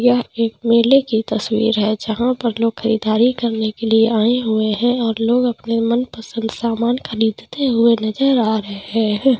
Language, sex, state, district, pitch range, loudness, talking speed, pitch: Hindi, female, Bihar, Begusarai, 220-240 Hz, -17 LUFS, 180 wpm, 230 Hz